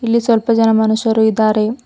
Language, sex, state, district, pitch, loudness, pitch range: Kannada, female, Karnataka, Bidar, 225 Hz, -14 LUFS, 220-230 Hz